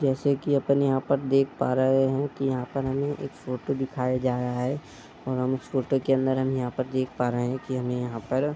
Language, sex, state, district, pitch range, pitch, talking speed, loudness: Hindi, male, Uttar Pradesh, Budaun, 125-135 Hz, 130 Hz, 225 wpm, -26 LUFS